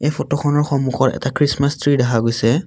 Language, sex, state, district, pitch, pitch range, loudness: Assamese, male, Assam, Kamrup Metropolitan, 140 Hz, 130-145 Hz, -17 LUFS